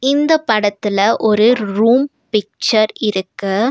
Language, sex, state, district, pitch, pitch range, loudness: Tamil, female, Tamil Nadu, Nilgiris, 215 Hz, 205-245 Hz, -15 LUFS